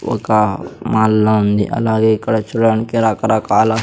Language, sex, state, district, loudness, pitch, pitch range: Telugu, female, Andhra Pradesh, Sri Satya Sai, -15 LUFS, 110 Hz, 105-110 Hz